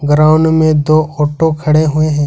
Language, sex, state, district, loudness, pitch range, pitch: Hindi, male, Jharkhand, Ranchi, -11 LUFS, 150-155 Hz, 155 Hz